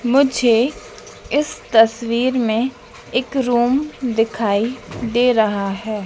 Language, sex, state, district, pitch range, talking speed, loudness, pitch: Hindi, female, Madhya Pradesh, Dhar, 225-255 Hz, 100 wpm, -18 LUFS, 240 Hz